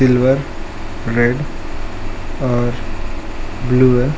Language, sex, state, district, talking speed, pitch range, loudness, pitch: Hindi, male, Uttar Pradesh, Ghazipur, 70 wpm, 110-125 Hz, -18 LUFS, 120 Hz